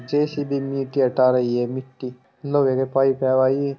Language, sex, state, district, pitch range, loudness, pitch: Hindi, male, Uttar Pradesh, Muzaffarnagar, 130-140 Hz, -21 LUFS, 130 Hz